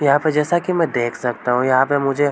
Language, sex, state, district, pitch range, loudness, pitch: Hindi, male, Uttar Pradesh, Varanasi, 125-150 Hz, -18 LUFS, 140 Hz